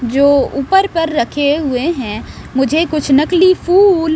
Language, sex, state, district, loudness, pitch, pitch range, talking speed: Hindi, female, Bihar, West Champaran, -13 LUFS, 305 Hz, 275-340 Hz, 160 wpm